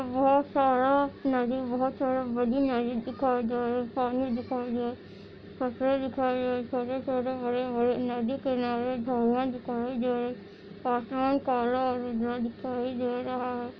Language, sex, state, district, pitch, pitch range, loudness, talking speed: Hindi, female, Andhra Pradesh, Anantapur, 250 Hz, 245-260 Hz, -29 LUFS, 180 wpm